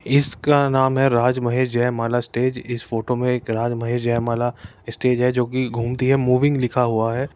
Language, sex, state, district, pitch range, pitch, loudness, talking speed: Hindi, male, Uttar Pradesh, Etah, 120-130 Hz, 125 Hz, -20 LUFS, 235 wpm